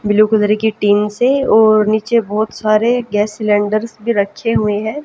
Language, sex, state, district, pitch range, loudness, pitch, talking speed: Hindi, female, Haryana, Jhajjar, 210-225 Hz, -14 LUFS, 215 Hz, 180 wpm